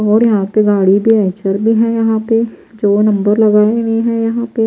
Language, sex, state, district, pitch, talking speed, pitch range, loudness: Hindi, female, Bihar, Patna, 220 Hz, 220 wpm, 205-225 Hz, -13 LUFS